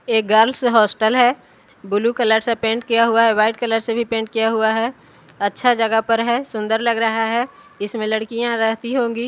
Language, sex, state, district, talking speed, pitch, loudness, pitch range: Hindi, female, Bihar, Patna, 205 wpm, 225 Hz, -18 LUFS, 220-235 Hz